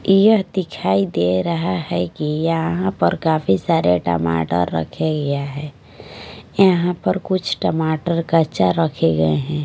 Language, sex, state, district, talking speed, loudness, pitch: Hindi, female, Bihar, Patna, 135 wpm, -19 LUFS, 155 Hz